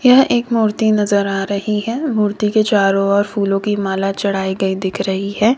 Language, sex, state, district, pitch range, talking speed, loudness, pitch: Hindi, female, Uttar Pradesh, Lalitpur, 195-215 Hz, 205 wpm, -16 LUFS, 205 Hz